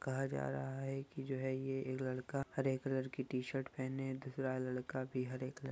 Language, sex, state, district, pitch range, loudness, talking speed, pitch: Hindi, male, Bihar, Saharsa, 130-135 Hz, -41 LUFS, 250 wpm, 130 Hz